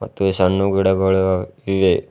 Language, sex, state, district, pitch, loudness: Kannada, male, Karnataka, Bidar, 95 Hz, -18 LUFS